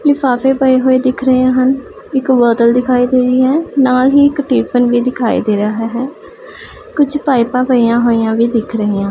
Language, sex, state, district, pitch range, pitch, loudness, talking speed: Punjabi, female, Punjab, Pathankot, 235-270 Hz, 255 Hz, -12 LUFS, 190 wpm